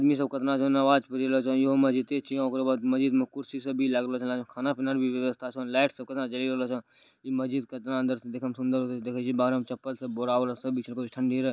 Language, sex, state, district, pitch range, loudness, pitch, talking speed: Hindi, male, Bihar, Purnia, 125-135 Hz, -28 LUFS, 130 Hz, 275 wpm